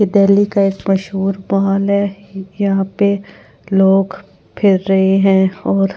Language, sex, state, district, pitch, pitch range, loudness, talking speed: Hindi, female, Delhi, New Delhi, 195 Hz, 190-200 Hz, -15 LUFS, 140 wpm